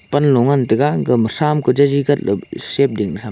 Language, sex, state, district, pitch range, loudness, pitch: Wancho, male, Arunachal Pradesh, Longding, 125-145 Hz, -16 LUFS, 140 Hz